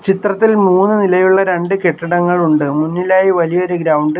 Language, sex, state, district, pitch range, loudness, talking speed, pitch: Malayalam, male, Kerala, Kollam, 170-195 Hz, -13 LUFS, 145 wpm, 180 Hz